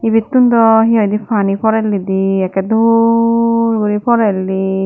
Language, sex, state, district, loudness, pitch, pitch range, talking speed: Chakma, female, Tripura, Dhalai, -13 LUFS, 220 Hz, 195-230 Hz, 125 wpm